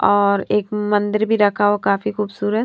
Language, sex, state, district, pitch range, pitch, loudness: Hindi, female, Haryana, Rohtak, 205-210 Hz, 205 Hz, -18 LUFS